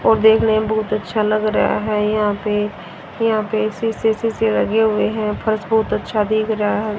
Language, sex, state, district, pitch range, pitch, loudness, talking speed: Hindi, female, Haryana, Rohtak, 210-220 Hz, 215 Hz, -18 LUFS, 195 wpm